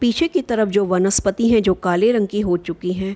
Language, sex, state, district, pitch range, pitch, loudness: Hindi, female, Bihar, Gopalganj, 185-230 Hz, 205 Hz, -18 LUFS